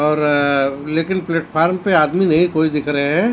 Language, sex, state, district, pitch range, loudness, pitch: Hindi, male, Maharashtra, Mumbai Suburban, 150-175 Hz, -16 LUFS, 160 Hz